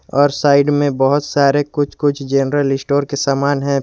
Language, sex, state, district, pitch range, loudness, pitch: Hindi, male, Jharkhand, Garhwa, 140-145 Hz, -15 LUFS, 140 Hz